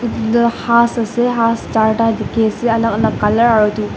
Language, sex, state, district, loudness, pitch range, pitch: Nagamese, female, Nagaland, Dimapur, -15 LUFS, 220-235 Hz, 230 Hz